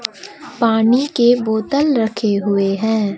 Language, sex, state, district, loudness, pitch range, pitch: Hindi, female, Bihar, Katihar, -16 LUFS, 215-255 Hz, 225 Hz